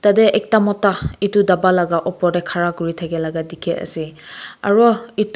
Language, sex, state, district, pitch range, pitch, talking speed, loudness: Nagamese, female, Nagaland, Kohima, 170-205 Hz, 185 Hz, 170 wpm, -17 LUFS